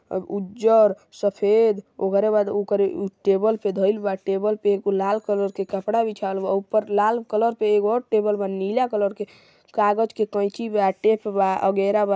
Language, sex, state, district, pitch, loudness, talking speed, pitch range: Hindi, male, Uttar Pradesh, Gorakhpur, 205 Hz, -22 LUFS, 190 wpm, 195-215 Hz